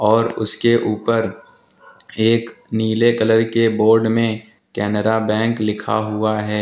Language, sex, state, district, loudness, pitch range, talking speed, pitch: Hindi, male, Uttar Pradesh, Lucknow, -18 LUFS, 110-115 Hz, 125 wpm, 110 Hz